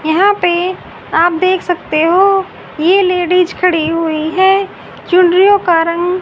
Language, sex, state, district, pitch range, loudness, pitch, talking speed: Hindi, female, Haryana, Rohtak, 335-375 Hz, -12 LUFS, 360 Hz, 135 wpm